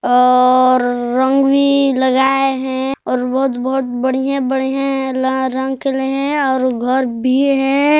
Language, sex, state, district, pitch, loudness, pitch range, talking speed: Hindi, male, Chhattisgarh, Sarguja, 265 Hz, -15 LUFS, 255-270 Hz, 125 wpm